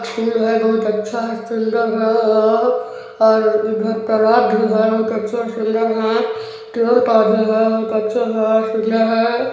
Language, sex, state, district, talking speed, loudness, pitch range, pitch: Hindi, male, Chhattisgarh, Balrampur, 140 wpm, -16 LUFS, 220-230 Hz, 225 Hz